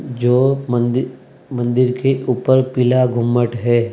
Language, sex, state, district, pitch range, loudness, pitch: Hindi, male, Maharashtra, Mumbai Suburban, 120-130 Hz, -16 LUFS, 125 Hz